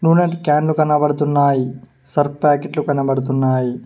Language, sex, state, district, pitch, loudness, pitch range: Telugu, male, Telangana, Mahabubabad, 145 Hz, -17 LUFS, 135-150 Hz